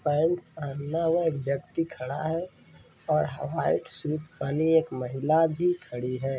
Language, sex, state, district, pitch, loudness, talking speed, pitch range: Hindi, male, Rajasthan, Churu, 155 Hz, -28 LUFS, 130 wpm, 140-165 Hz